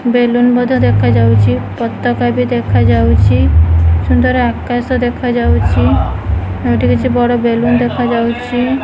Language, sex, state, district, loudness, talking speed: Odia, female, Odisha, Khordha, -12 LUFS, 100 wpm